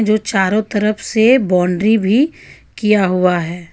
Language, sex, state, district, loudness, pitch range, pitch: Hindi, female, Jharkhand, Ranchi, -15 LUFS, 185-220 Hz, 210 Hz